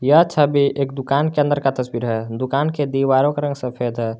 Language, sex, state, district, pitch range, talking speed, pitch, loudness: Hindi, male, Jharkhand, Garhwa, 125-145 Hz, 230 wpm, 135 Hz, -19 LUFS